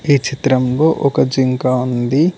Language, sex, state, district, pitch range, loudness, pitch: Telugu, male, Telangana, Mahabubabad, 125-145 Hz, -15 LUFS, 130 Hz